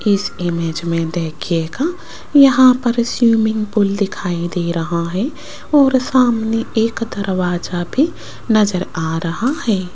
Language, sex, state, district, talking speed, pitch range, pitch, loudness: Hindi, female, Rajasthan, Jaipur, 125 wpm, 175-240 Hz, 205 Hz, -17 LUFS